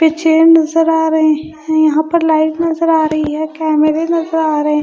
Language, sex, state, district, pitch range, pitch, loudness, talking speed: Hindi, female, Bihar, Katihar, 310-325 Hz, 315 Hz, -13 LUFS, 210 wpm